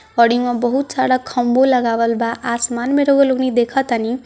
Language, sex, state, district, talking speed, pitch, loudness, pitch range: Hindi, female, Bihar, East Champaran, 210 wpm, 245 Hz, -16 LUFS, 235-265 Hz